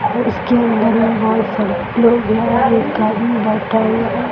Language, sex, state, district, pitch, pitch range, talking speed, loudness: Hindi, female, Bihar, Sitamarhi, 225 Hz, 220-235 Hz, 140 wpm, -15 LUFS